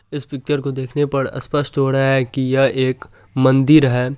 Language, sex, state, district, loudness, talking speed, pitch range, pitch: Hindi, male, Bihar, Supaul, -17 LUFS, 185 wpm, 130-140 Hz, 135 Hz